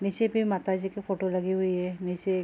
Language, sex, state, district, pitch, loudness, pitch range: Hindi, female, Bihar, Saharsa, 190 Hz, -29 LUFS, 185-195 Hz